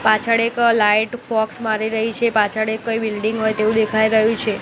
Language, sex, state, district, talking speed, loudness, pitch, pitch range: Gujarati, female, Gujarat, Gandhinagar, 210 wpm, -18 LUFS, 220 Hz, 215-225 Hz